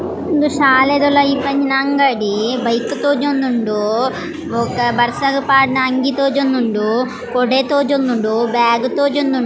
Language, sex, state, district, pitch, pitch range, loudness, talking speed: Tulu, female, Karnataka, Dakshina Kannada, 260 Hz, 240-280 Hz, -15 LUFS, 110 wpm